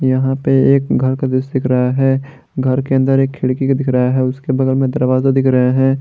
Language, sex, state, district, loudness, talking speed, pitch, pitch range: Hindi, male, Jharkhand, Garhwa, -15 LUFS, 250 wpm, 130 Hz, 130-135 Hz